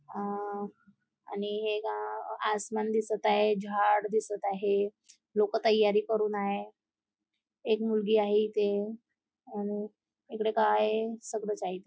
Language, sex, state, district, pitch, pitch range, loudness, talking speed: Marathi, female, Maharashtra, Nagpur, 210 Hz, 200-215 Hz, -30 LUFS, 120 wpm